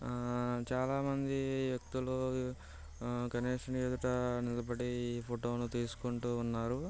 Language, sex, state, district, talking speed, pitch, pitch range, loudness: Telugu, male, Andhra Pradesh, Guntur, 85 wpm, 120 Hz, 120-130 Hz, -37 LUFS